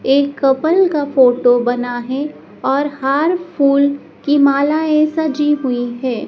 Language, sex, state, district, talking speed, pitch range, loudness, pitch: Hindi, male, Madhya Pradesh, Dhar, 135 wpm, 260-295 Hz, -15 LUFS, 280 Hz